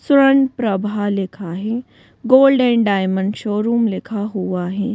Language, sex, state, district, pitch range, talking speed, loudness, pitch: Hindi, female, Madhya Pradesh, Bhopal, 195-235 Hz, 135 wpm, -17 LUFS, 210 Hz